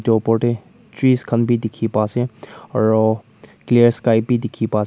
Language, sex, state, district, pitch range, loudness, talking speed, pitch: Nagamese, male, Nagaland, Kohima, 110-120 Hz, -18 LUFS, 185 wpm, 115 Hz